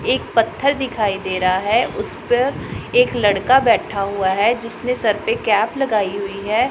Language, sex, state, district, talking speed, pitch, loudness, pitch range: Hindi, male, Punjab, Pathankot, 180 wpm, 215 Hz, -18 LUFS, 200-250 Hz